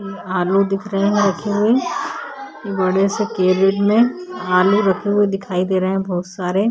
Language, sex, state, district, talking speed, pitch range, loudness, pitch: Hindi, female, Bihar, Vaishali, 180 wpm, 185-205 Hz, -18 LUFS, 195 Hz